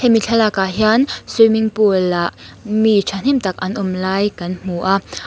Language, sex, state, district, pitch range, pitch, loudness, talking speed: Mizo, female, Mizoram, Aizawl, 185-220 Hz, 205 Hz, -16 LUFS, 170 wpm